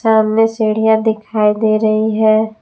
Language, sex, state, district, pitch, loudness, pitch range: Hindi, female, Jharkhand, Palamu, 220 Hz, -14 LUFS, 215-220 Hz